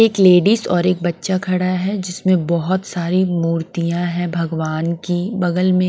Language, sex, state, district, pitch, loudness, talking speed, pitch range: Hindi, female, Bihar, West Champaran, 180 Hz, -18 LUFS, 175 wpm, 170-185 Hz